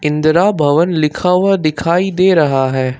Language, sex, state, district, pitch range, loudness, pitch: Hindi, male, Uttar Pradesh, Lucknow, 150-180 Hz, -13 LUFS, 160 Hz